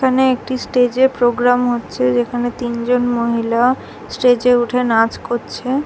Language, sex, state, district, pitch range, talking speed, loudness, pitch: Bengali, female, West Bengal, Dakshin Dinajpur, 240-250 Hz, 135 wpm, -16 LUFS, 245 Hz